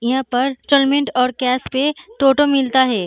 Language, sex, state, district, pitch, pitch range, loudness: Hindi, female, Uttar Pradesh, Muzaffarnagar, 265 Hz, 250-280 Hz, -17 LUFS